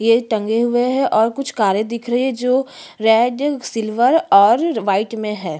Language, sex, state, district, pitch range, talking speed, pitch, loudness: Hindi, female, Chhattisgarh, Jashpur, 220-255 Hz, 180 wpm, 235 Hz, -17 LUFS